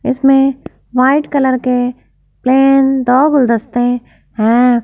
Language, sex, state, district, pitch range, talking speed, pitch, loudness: Hindi, female, Punjab, Fazilka, 245-270 Hz, 100 wpm, 260 Hz, -12 LUFS